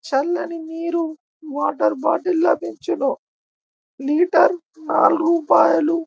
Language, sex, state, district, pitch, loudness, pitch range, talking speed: Telugu, male, Telangana, Karimnagar, 330 Hz, -19 LUFS, 315-340 Hz, 90 wpm